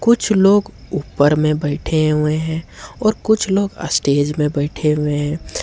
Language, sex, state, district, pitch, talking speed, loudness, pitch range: Hindi, male, Jharkhand, Ranchi, 155 Hz, 160 wpm, -17 LUFS, 150-195 Hz